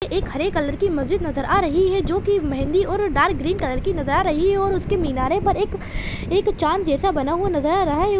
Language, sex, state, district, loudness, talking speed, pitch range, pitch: Hindi, female, Chhattisgarh, Bilaspur, -21 LUFS, 255 wpm, 320-390 Hz, 375 Hz